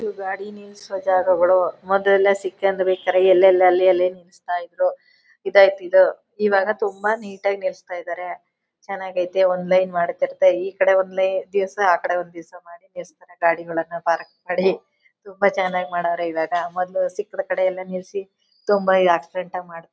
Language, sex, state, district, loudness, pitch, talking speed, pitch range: Kannada, female, Karnataka, Chamarajanagar, -20 LUFS, 185 Hz, 155 wpm, 180-195 Hz